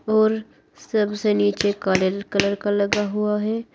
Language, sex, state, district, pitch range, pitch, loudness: Hindi, female, Uttar Pradesh, Saharanpur, 200-215 Hz, 210 Hz, -22 LUFS